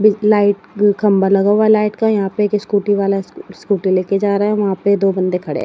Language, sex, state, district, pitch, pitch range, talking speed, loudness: Hindi, female, Odisha, Nuapada, 205 Hz, 195-210 Hz, 235 wpm, -15 LUFS